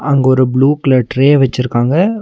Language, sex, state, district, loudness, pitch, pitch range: Tamil, male, Tamil Nadu, Nilgiris, -12 LUFS, 135 Hz, 130-145 Hz